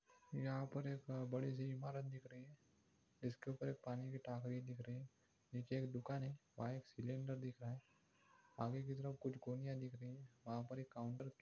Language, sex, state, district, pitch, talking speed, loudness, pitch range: Hindi, male, Maharashtra, Nagpur, 130 Hz, 215 wpm, -49 LUFS, 125-135 Hz